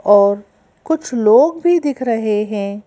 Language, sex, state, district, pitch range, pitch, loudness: Hindi, female, Madhya Pradesh, Bhopal, 205-305 Hz, 225 Hz, -15 LUFS